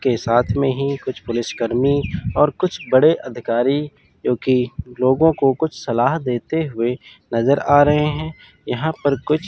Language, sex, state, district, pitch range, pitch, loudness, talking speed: Hindi, male, Chandigarh, Chandigarh, 120-150 Hz, 135 Hz, -19 LUFS, 150 wpm